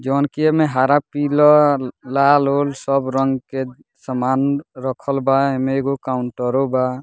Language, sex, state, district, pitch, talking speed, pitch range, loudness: Bhojpuri, male, Bihar, Muzaffarpur, 135 Hz, 145 wpm, 130-140 Hz, -18 LUFS